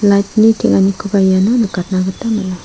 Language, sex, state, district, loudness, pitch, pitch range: Garo, female, Meghalaya, South Garo Hills, -13 LUFS, 200 Hz, 190-220 Hz